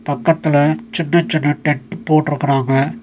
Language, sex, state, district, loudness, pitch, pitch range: Tamil, male, Tamil Nadu, Nilgiris, -16 LUFS, 150 Hz, 145-165 Hz